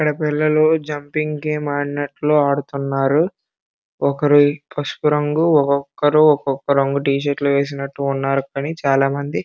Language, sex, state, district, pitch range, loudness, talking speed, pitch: Telugu, male, Andhra Pradesh, Srikakulam, 140-150 Hz, -18 LUFS, 70 wpm, 145 Hz